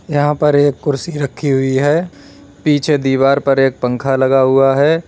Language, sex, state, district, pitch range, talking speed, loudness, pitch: Hindi, male, Uttar Pradesh, Lalitpur, 135-150 Hz, 175 wpm, -14 LUFS, 140 Hz